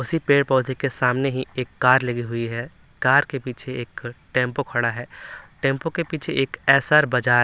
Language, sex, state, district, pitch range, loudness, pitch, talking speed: Hindi, male, Bihar, Patna, 120-140 Hz, -21 LUFS, 130 Hz, 185 wpm